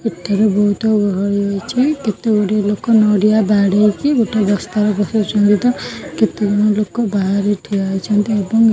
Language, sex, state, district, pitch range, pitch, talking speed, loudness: Odia, female, Odisha, Khordha, 200-220 Hz, 210 Hz, 130 wpm, -15 LUFS